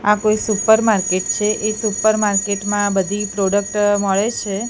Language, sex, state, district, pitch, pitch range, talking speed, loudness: Gujarati, female, Gujarat, Gandhinagar, 205 Hz, 200-215 Hz, 155 wpm, -17 LUFS